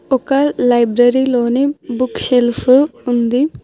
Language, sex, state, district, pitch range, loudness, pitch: Telugu, female, Telangana, Hyderabad, 240-270 Hz, -14 LUFS, 250 Hz